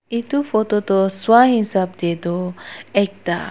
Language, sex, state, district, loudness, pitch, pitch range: Nagamese, female, Nagaland, Dimapur, -18 LUFS, 200 Hz, 180-225 Hz